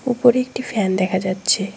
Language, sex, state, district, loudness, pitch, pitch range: Bengali, female, West Bengal, Cooch Behar, -19 LUFS, 210 Hz, 190-245 Hz